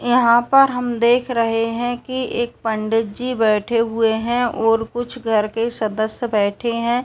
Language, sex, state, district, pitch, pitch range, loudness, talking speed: Hindi, male, Uttar Pradesh, Etah, 235 Hz, 225-245 Hz, -19 LUFS, 170 wpm